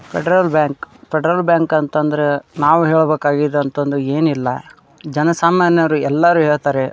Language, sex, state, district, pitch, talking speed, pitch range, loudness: Kannada, male, Karnataka, Dharwad, 150 Hz, 130 wpm, 145-165 Hz, -15 LUFS